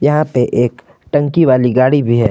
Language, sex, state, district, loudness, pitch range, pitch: Hindi, male, Jharkhand, Palamu, -13 LUFS, 120-145 Hz, 130 Hz